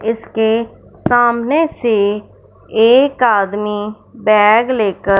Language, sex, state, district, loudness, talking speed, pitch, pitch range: Hindi, male, Punjab, Fazilka, -14 LUFS, 80 wpm, 225 Hz, 210-240 Hz